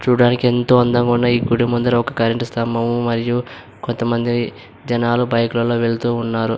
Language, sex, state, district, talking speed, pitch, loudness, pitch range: Telugu, male, Andhra Pradesh, Anantapur, 145 wpm, 120 Hz, -17 LUFS, 115-120 Hz